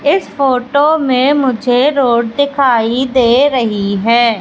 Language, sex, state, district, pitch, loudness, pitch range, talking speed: Hindi, female, Madhya Pradesh, Katni, 250 Hz, -12 LUFS, 235-275 Hz, 125 wpm